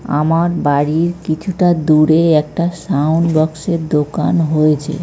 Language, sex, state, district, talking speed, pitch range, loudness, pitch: Bengali, male, West Bengal, North 24 Parganas, 120 wpm, 155-170 Hz, -15 LUFS, 160 Hz